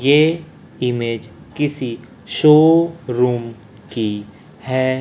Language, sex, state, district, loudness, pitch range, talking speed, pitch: Hindi, male, Chhattisgarh, Raipur, -17 LUFS, 115-150 Hz, 70 wpm, 125 Hz